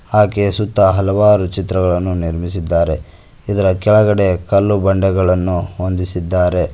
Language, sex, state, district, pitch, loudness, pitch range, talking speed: Kannada, male, Karnataka, Koppal, 95 Hz, -15 LUFS, 90-100 Hz, 90 wpm